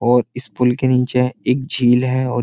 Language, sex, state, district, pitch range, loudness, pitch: Hindi, male, Uttar Pradesh, Jyotiba Phule Nagar, 125-130 Hz, -17 LUFS, 125 Hz